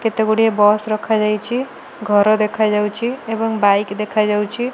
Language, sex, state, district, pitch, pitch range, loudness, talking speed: Odia, female, Odisha, Malkangiri, 215 Hz, 210-225 Hz, -17 LUFS, 115 wpm